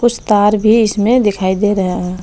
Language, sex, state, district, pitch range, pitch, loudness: Hindi, female, Jharkhand, Palamu, 190-220 Hz, 205 Hz, -13 LUFS